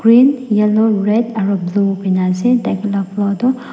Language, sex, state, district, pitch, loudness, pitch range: Nagamese, female, Nagaland, Dimapur, 210 Hz, -15 LUFS, 200-235 Hz